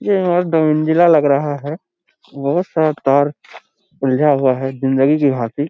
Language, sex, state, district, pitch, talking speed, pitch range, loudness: Hindi, male, Jharkhand, Jamtara, 145 Hz, 155 wpm, 135-165 Hz, -16 LUFS